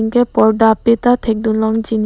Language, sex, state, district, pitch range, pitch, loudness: Karbi, female, Assam, Karbi Anglong, 220-235 Hz, 225 Hz, -14 LUFS